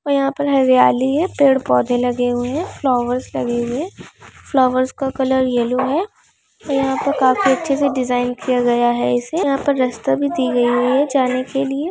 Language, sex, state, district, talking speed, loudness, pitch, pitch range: Bhojpuri, female, Uttar Pradesh, Gorakhpur, 180 wpm, -17 LUFS, 260 Hz, 245-275 Hz